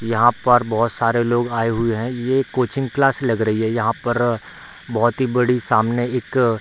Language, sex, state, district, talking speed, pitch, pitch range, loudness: Hindi, male, Bihar, Bhagalpur, 190 wpm, 120 Hz, 115-125 Hz, -19 LUFS